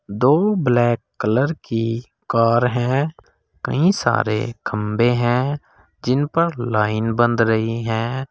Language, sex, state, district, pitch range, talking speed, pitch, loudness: Hindi, male, Uttar Pradesh, Saharanpur, 115-135 Hz, 115 wpm, 120 Hz, -19 LUFS